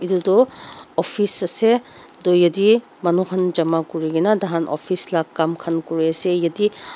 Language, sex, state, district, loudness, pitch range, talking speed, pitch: Nagamese, female, Nagaland, Dimapur, -18 LUFS, 165-195 Hz, 155 wpm, 180 Hz